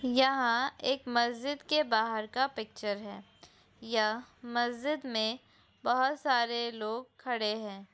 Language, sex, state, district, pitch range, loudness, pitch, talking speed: Hindi, female, Uttar Pradesh, Hamirpur, 220-260 Hz, -32 LUFS, 240 Hz, 120 wpm